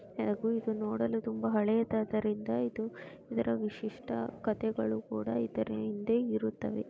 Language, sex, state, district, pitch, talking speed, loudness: Kannada, female, Karnataka, Gulbarga, 180 Hz, 120 wpm, -34 LUFS